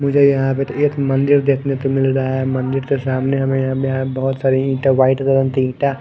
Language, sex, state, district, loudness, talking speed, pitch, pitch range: Hindi, male, Bihar, West Champaran, -17 LUFS, 220 wpm, 135 Hz, 130-135 Hz